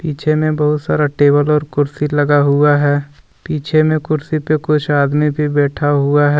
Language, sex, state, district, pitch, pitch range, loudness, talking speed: Hindi, male, Jharkhand, Deoghar, 145 Hz, 145-150 Hz, -15 LUFS, 190 wpm